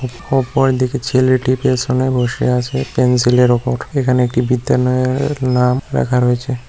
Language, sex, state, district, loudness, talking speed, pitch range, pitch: Bengali, male, West Bengal, Cooch Behar, -15 LUFS, 115 wpm, 125-130 Hz, 125 Hz